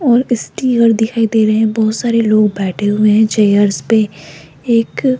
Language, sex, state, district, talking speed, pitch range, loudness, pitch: Hindi, female, Rajasthan, Jaipur, 185 wpm, 205-230 Hz, -13 LUFS, 220 Hz